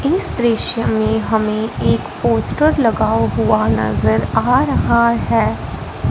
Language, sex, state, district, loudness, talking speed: Hindi, female, Punjab, Fazilka, -16 LUFS, 120 wpm